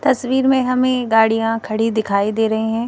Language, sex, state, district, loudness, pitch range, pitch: Hindi, female, Madhya Pradesh, Bhopal, -17 LUFS, 220-255 Hz, 225 Hz